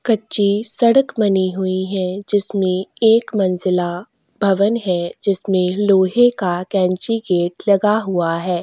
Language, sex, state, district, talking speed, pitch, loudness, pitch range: Hindi, female, Goa, North and South Goa, 120 wpm, 195 Hz, -17 LUFS, 185-215 Hz